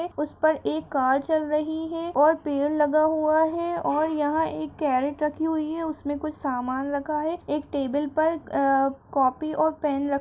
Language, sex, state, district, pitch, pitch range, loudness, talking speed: Hindi, female, Uttar Pradesh, Jyotiba Phule Nagar, 305 Hz, 285-315 Hz, -25 LUFS, 200 wpm